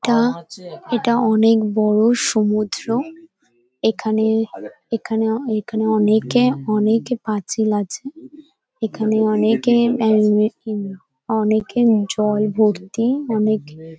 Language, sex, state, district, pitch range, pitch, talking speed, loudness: Bengali, female, West Bengal, Paschim Medinipur, 210-235 Hz, 220 Hz, 80 wpm, -18 LUFS